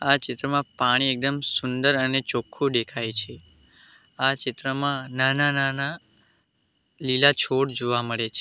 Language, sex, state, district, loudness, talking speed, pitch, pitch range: Gujarati, male, Gujarat, Valsad, -23 LUFS, 130 wpm, 135 Hz, 125-140 Hz